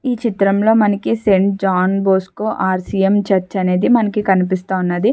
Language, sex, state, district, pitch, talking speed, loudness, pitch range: Telugu, female, Andhra Pradesh, Chittoor, 195 Hz, 175 wpm, -16 LUFS, 190-210 Hz